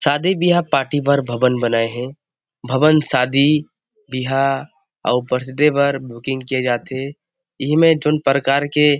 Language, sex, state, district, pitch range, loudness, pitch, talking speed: Chhattisgarhi, male, Chhattisgarh, Rajnandgaon, 130-150 Hz, -18 LUFS, 140 Hz, 155 wpm